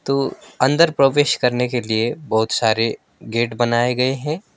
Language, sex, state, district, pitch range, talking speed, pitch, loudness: Hindi, male, West Bengal, Alipurduar, 115-135 Hz, 155 wpm, 125 Hz, -19 LUFS